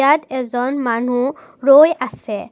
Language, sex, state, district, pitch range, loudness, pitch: Assamese, female, Assam, Kamrup Metropolitan, 245-280 Hz, -16 LUFS, 260 Hz